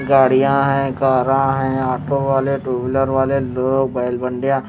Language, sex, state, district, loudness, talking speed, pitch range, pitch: Hindi, male, Chhattisgarh, Raipur, -17 LUFS, 155 wpm, 130-135 Hz, 135 Hz